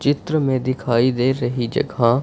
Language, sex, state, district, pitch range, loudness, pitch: Hindi, male, Punjab, Fazilka, 120-135 Hz, -20 LUFS, 130 Hz